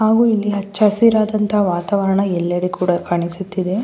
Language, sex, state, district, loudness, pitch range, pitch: Kannada, female, Karnataka, Mysore, -17 LUFS, 180-215 Hz, 200 Hz